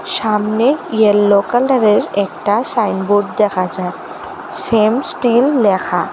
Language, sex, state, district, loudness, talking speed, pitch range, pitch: Bengali, female, Assam, Hailakandi, -14 LUFS, 100 wpm, 205-240 Hz, 215 Hz